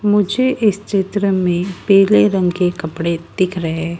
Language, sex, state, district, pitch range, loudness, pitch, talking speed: Hindi, female, Madhya Pradesh, Dhar, 170-200 Hz, -16 LUFS, 185 Hz, 150 wpm